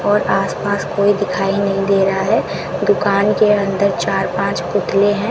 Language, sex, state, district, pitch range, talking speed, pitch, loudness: Hindi, female, Rajasthan, Bikaner, 195-205 Hz, 170 wpm, 200 Hz, -16 LUFS